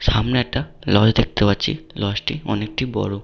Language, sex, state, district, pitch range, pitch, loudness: Bengali, male, West Bengal, Paschim Medinipur, 105-135 Hz, 110 Hz, -20 LUFS